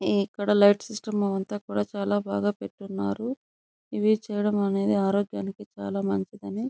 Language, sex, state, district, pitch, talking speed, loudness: Telugu, female, Andhra Pradesh, Chittoor, 200 Hz, 145 wpm, -27 LUFS